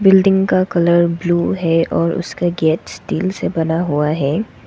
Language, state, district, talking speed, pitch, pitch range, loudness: Hindi, Arunachal Pradesh, Lower Dibang Valley, 165 wpm, 170 Hz, 165-185 Hz, -16 LUFS